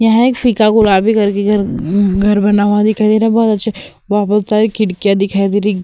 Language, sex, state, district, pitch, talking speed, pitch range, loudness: Hindi, female, Uttar Pradesh, Hamirpur, 210 Hz, 215 wpm, 200-220 Hz, -12 LUFS